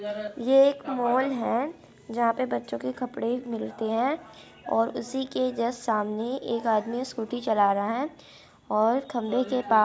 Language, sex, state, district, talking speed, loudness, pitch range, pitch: Hindi, female, Andhra Pradesh, Anantapur, 160 wpm, -27 LUFS, 220-255 Hz, 235 Hz